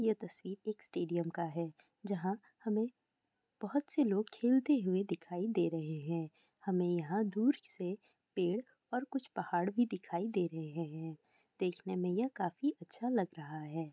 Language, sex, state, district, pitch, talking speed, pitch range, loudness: Hindi, female, Bihar, Gopalganj, 190 Hz, 170 wpm, 170-225 Hz, -37 LUFS